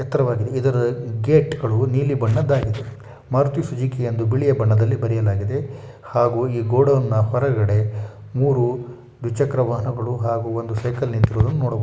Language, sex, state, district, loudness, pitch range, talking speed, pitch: Kannada, male, Karnataka, Shimoga, -20 LUFS, 115-135 Hz, 120 wpm, 120 Hz